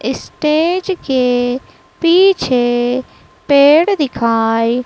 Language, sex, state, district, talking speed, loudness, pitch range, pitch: Hindi, female, Madhya Pradesh, Dhar, 60 wpm, -13 LUFS, 245-335 Hz, 265 Hz